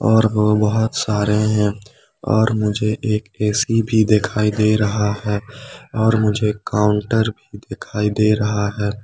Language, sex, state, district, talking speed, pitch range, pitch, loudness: Hindi, male, Jharkhand, Palamu, 140 wpm, 105-110 Hz, 105 Hz, -18 LUFS